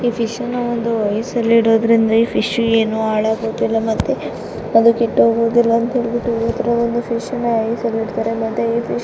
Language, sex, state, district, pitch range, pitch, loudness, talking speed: Kannada, female, Karnataka, Dakshina Kannada, 225-235 Hz, 230 Hz, -17 LUFS, 125 wpm